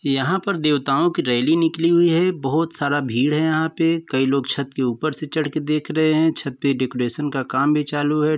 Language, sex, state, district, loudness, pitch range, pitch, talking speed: Hindi, male, Uttar Pradesh, Varanasi, -20 LUFS, 140-160 Hz, 150 Hz, 235 wpm